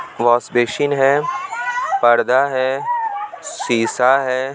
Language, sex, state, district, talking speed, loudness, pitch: Hindi, male, Bihar, Supaul, 90 wpm, -17 LUFS, 140 Hz